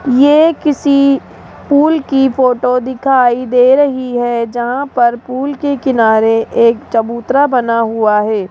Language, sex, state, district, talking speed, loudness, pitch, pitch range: Hindi, female, Rajasthan, Jaipur, 135 wpm, -12 LUFS, 255 Hz, 235-275 Hz